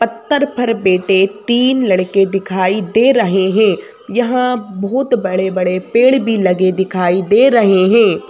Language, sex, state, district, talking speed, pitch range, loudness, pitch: Hindi, female, Madhya Pradesh, Bhopal, 145 wpm, 190-245 Hz, -13 LUFS, 205 Hz